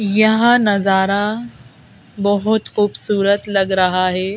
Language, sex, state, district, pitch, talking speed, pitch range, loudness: Hindi, female, Madhya Pradesh, Bhopal, 205 Hz, 95 wpm, 195-210 Hz, -16 LUFS